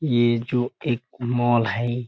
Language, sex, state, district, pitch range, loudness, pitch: Hindi, male, Chhattisgarh, Korba, 120-125 Hz, -23 LUFS, 120 Hz